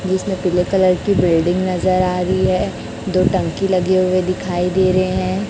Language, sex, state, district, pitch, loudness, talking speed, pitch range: Hindi, female, Chhattisgarh, Raipur, 185 Hz, -17 LUFS, 185 wpm, 180-185 Hz